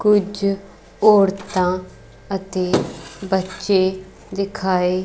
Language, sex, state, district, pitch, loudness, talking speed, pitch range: Punjabi, female, Punjab, Kapurthala, 190 Hz, -20 LUFS, 60 wpm, 185-200 Hz